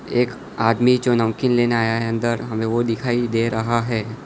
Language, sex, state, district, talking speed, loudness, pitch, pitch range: Hindi, male, Gujarat, Valsad, 195 wpm, -20 LUFS, 115 Hz, 115-120 Hz